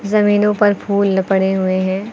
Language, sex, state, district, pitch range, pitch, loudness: Hindi, female, Uttar Pradesh, Lucknow, 190-205 Hz, 200 Hz, -15 LUFS